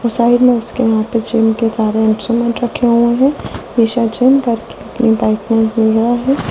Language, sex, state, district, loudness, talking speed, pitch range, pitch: Hindi, female, Delhi, New Delhi, -13 LUFS, 185 wpm, 225-240 Hz, 235 Hz